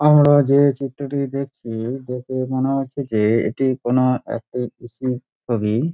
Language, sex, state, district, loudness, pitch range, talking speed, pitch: Bengali, male, West Bengal, Dakshin Dinajpur, -20 LUFS, 120-140 Hz, 150 wpm, 130 Hz